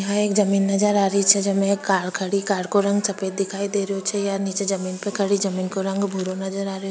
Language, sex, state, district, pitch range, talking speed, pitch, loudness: Rajasthani, female, Rajasthan, Churu, 195-200 Hz, 260 wpm, 195 Hz, -22 LUFS